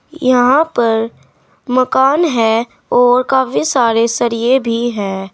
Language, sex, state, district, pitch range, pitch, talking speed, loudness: Hindi, female, Uttar Pradesh, Saharanpur, 230-260 Hz, 245 Hz, 110 wpm, -13 LUFS